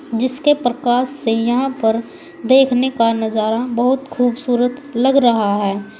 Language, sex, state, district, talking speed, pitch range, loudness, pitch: Hindi, female, Uttar Pradesh, Saharanpur, 130 wpm, 230-265 Hz, -16 LUFS, 245 Hz